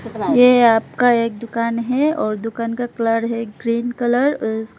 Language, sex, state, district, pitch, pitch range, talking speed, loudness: Hindi, female, Arunachal Pradesh, Lower Dibang Valley, 230 Hz, 230-245 Hz, 165 wpm, -18 LUFS